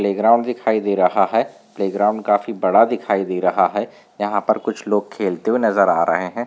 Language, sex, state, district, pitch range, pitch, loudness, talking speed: Hindi, male, Andhra Pradesh, Visakhapatnam, 100-110 Hz, 105 Hz, -18 LUFS, 215 wpm